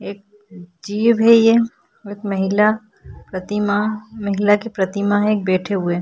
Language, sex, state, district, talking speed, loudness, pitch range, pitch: Hindi, female, Maharashtra, Chandrapur, 140 wpm, -18 LUFS, 195-215 Hz, 205 Hz